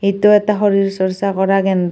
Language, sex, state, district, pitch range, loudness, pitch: Assamese, female, Assam, Kamrup Metropolitan, 190-205 Hz, -15 LUFS, 195 Hz